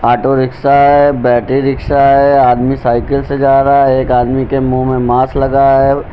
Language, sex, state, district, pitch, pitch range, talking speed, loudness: Hindi, male, Uttar Pradesh, Lucknow, 135 Hz, 130-140 Hz, 195 wpm, -11 LUFS